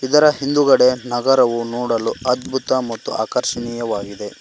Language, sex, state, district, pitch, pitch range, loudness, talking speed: Kannada, male, Karnataka, Koppal, 125 Hz, 115-130 Hz, -18 LUFS, 95 wpm